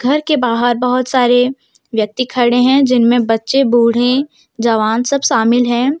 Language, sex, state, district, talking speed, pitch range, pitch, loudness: Hindi, female, Jharkhand, Deoghar, 150 wpm, 235-265 Hz, 245 Hz, -13 LUFS